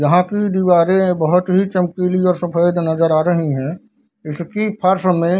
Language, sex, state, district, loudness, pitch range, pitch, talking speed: Hindi, male, Bihar, Darbhanga, -16 LUFS, 170-190 Hz, 180 Hz, 180 wpm